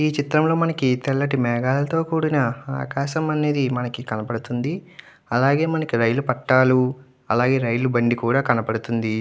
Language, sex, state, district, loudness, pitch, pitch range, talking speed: Telugu, male, Andhra Pradesh, Chittoor, -21 LUFS, 130 Hz, 120-150 Hz, 125 wpm